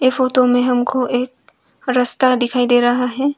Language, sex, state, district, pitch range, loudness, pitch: Hindi, female, Arunachal Pradesh, Longding, 245-255 Hz, -16 LUFS, 250 Hz